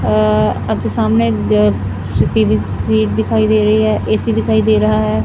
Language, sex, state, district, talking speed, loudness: Punjabi, female, Punjab, Fazilka, 180 wpm, -14 LUFS